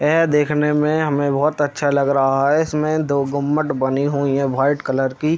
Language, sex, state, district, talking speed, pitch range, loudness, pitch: Hindi, male, Bihar, Madhepura, 200 wpm, 140-150 Hz, -18 LUFS, 145 Hz